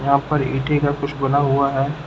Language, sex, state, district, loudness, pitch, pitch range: Hindi, male, Uttar Pradesh, Lucknow, -19 LUFS, 140 Hz, 135-145 Hz